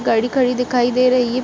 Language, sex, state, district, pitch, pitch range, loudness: Hindi, female, Uttar Pradesh, Jalaun, 250 Hz, 245-255 Hz, -17 LUFS